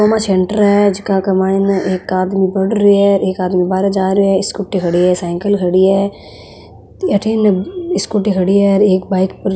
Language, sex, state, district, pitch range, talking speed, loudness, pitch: Marwari, female, Rajasthan, Nagaur, 185-200 Hz, 195 wpm, -14 LUFS, 195 Hz